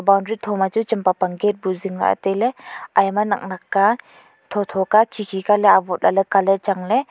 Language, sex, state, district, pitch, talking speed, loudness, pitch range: Wancho, female, Arunachal Pradesh, Longding, 200 Hz, 195 wpm, -19 LUFS, 190-215 Hz